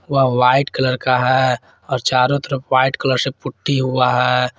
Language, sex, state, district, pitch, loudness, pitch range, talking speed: Hindi, male, Jharkhand, Garhwa, 130 Hz, -17 LUFS, 125-135 Hz, 185 wpm